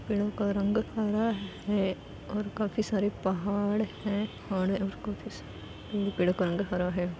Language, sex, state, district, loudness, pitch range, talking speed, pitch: Hindi, female, Bihar, Gopalganj, -31 LUFS, 190-210 Hz, 135 wpm, 205 Hz